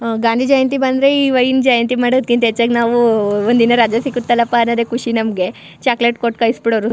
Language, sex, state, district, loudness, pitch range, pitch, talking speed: Kannada, female, Karnataka, Chamarajanagar, -14 LUFS, 230-250 Hz, 235 Hz, 175 wpm